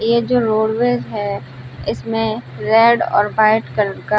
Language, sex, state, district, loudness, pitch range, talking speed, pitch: Hindi, female, Uttar Pradesh, Budaun, -17 LUFS, 200-225 Hz, 155 wpm, 215 Hz